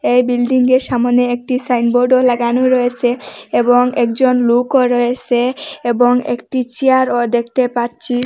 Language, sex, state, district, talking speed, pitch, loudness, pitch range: Bengali, female, Assam, Hailakandi, 140 wpm, 245 Hz, -14 LUFS, 240-255 Hz